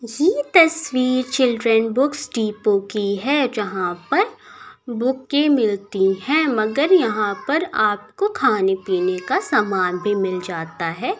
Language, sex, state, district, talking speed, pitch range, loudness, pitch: Hindi, female, Bihar, Muzaffarpur, 125 wpm, 200-290 Hz, -19 LUFS, 230 Hz